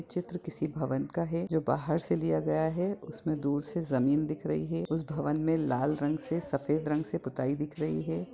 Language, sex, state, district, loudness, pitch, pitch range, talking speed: Hindi, male, Bihar, Jahanabad, -32 LUFS, 150 Hz, 135-160 Hz, 230 wpm